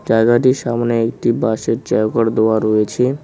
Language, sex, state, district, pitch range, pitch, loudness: Bengali, male, West Bengal, Cooch Behar, 110-120 Hz, 115 Hz, -16 LUFS